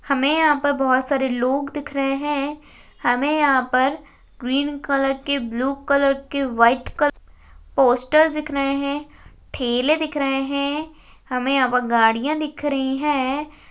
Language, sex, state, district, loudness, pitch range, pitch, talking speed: Hindi, female, Maharashtra, Aurangabad, -20 LUFS, 260-290 Hz, 275 Hz, 150 wpm